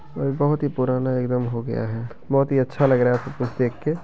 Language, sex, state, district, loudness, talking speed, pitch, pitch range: Maithili, male, Bihar, Begusarai, -22 LUFS, 280 wpm, 130 Hz, 125-140 Hz